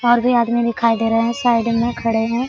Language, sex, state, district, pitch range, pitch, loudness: Hindi, female, Jharkhand, Sahebganj, 230-240 Hz, 235 Hz, -17 LUFS